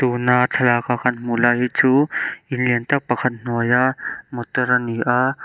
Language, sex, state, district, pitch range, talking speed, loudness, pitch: Mizo, male, Mizoram, Aizawl, 120-130 Hz, 165 wpm, -19 LUFS, 125 Hz